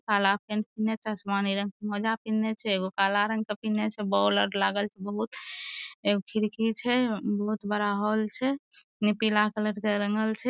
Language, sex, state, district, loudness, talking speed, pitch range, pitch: Maithili, female, Bihar, Madhepura, -28 LUFS, 185 wpm, 205-220 Hz, 215 Hz